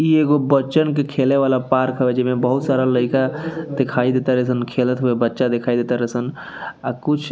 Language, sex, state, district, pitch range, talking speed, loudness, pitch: Bhojpuri, male, Bihar, East Champaran, 125-140 Hz, 195 wpm, -19 LUFS, 130 Hz